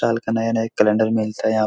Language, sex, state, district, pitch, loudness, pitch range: Hindi, male, Bihar, Supaul, 110 Hz, -20 LUFS, 110-115 Hz